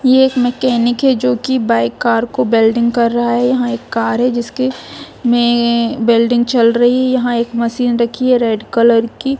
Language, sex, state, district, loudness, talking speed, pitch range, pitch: Hindi, female, Jharkhand, Jamtara, -14 LUFS, 185 wpm, 235-250 Hz, 240 Hz